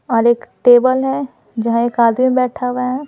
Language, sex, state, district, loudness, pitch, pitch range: Hindi, female, Bihar, Patna, -15 LUFS, 250 Hz, 235-255 Hz